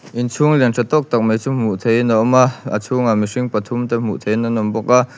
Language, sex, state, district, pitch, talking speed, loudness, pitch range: Mizo, male, Mizoram, Aizawl, 120 Hz, 280 wpm, -17 LUFS, 110-125 Hz